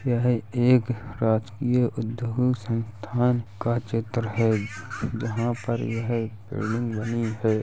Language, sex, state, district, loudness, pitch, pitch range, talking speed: Hindi, male, Uttar Pradesh, Jalaun, -26 LUFS, 115 Hz, 110-120 Hz, 110 wpm